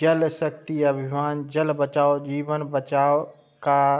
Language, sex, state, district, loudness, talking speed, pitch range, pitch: Hindi, male, Uttar Pradesh, Budaun, -23 LUFS, 135 wpm, 140-150 Hz, 145 Hz